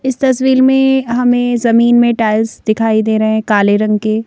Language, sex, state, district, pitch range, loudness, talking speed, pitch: Hindi, female, Madhya Pradesh, Bhopal, 220-250 Hz, -12 LUFS, 195 wpm, 230 Hz